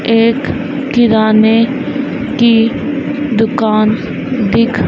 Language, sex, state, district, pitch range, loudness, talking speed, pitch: Hindi, female, Madhya Pradesh, Dhar, 225-270 Hz, -12 LUFS, 60 wpm, 235 Hz